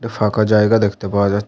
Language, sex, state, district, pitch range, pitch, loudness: Bengali, male, West Bengal, Paschim Medinipur, 100-110 Hz, 105 Hz, -16 LUFS